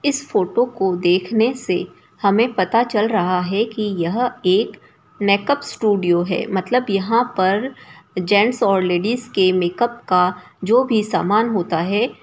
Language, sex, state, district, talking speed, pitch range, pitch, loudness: Hindi, female, Bihar, Samastipur, 145 wpm, 185-240 Hz, 205 Hz, -18 LUFS